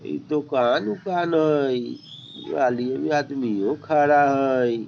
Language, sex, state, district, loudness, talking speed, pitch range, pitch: Bajjika, male, Bihar, Vaishali, -22 LUFS, 100 wpm, 125-150 Hz, 140 Hz